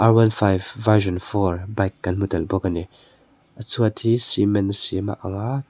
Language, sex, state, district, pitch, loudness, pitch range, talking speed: Mizo, male, Mizoram, Aizawl, 100 Hz, -20 LUFS, 95-115 Hz, 190 wpm